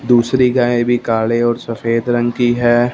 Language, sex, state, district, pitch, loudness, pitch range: Hindi, male, Punjab, Fazilka, 120 Hz, -15 LUFS, 115-120 Hz